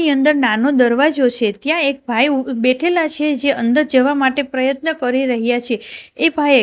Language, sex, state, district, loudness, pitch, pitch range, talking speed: Gujarati, female, Gujarat, Gandhinagar, -16 LUFS, 270 Hz, 250-295 Hz, 180 wpm